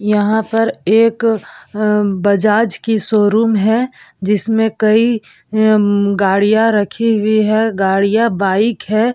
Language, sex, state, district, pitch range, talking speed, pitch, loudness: Hindi, female, Bihar, Vaishali, 205-225 Hz, 110 wpm, 215 Hz, -14 LUFS